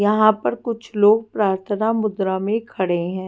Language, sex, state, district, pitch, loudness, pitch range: Hindi, female, Delhi, New Delhi, 210 Hz, -20 LUFS, 190-220 Hz